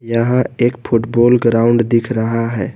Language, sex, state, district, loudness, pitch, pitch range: Hindi, male, Jharkhand, Garhwa, -15 LUFS, 115 Hz, 115-120 Hz